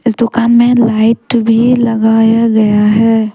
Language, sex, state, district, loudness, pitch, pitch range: Hindi, female, Jharkhand, Deoghar, -10 LUFS, 225 Hz, 220-235 Hz